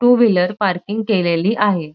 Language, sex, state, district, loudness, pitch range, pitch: Marathi, female, Maharashtra, Dhule, -17 LUFS, 180-215 Hz, 200 Hz